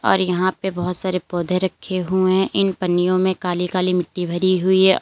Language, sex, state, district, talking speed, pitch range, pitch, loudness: Hindi, female, Uttar Pradesh, Lalitpur, 225 wpm, 180-185 Hz, 185 Hz, -20 LUFS